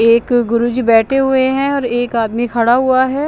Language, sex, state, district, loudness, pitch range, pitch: Hindi, female, Chandigarh, Chandigarh, -14 LUFS, 235-265 Hz, 245 Hz